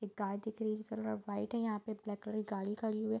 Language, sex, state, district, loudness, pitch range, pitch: Hindi, female, Bihar, Bhagalpur, -39 LUFS, 205-220 Hz, 215 Hz